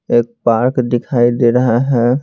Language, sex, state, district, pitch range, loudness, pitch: Hindi, male, Bihar, Patna, 120-125 Hz, -14 LUFS, 120 Hz